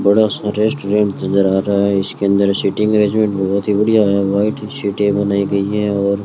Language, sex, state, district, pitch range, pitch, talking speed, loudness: Hindi, male, Rajasthan, Bikaner, 100-105 Hz, 100 Hz, 210 wpm, -16 LUFS